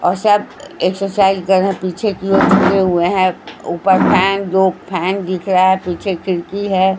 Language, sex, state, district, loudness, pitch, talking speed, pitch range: Hindi, female, Bihar, Patna, -15 LUFS, 190 Hz, 170 wpm, 185-195 Hz